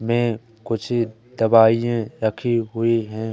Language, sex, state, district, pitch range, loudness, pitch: Hindi, male, Madhya Pradesh, Katni, 110-120 Hz, -20 LUFS, 115 Hz